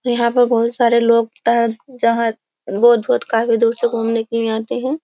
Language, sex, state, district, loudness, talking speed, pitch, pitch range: Hindi, female, Uttar Pradesh, Jyotiba Phule Nagar, -16 LUFS, 180 wpm, 230 Hz, 230-240 Hz